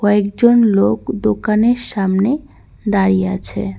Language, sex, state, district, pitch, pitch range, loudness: Bengali, female, West Bengal, Cooch Behar, 200 Hz, 185-220 Hz, -15 LUFS